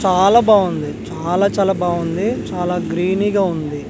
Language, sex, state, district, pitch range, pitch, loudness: Telugu, male, Andhra Pradesh, Manyam, 175-200 Hz, 185 Hz, -17 LUFS